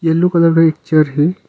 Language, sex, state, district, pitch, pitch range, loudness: Hindi, male, Arunachal Pradesh, Longding, 165 Hz, 155-170 Hz, -13 LUFS